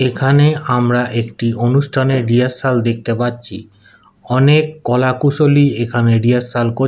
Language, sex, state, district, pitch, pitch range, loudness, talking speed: Bengali, male, West Bengal, Kolkata, 125 Hz, 120-135 Hz, -14 LUFS, 115 wpm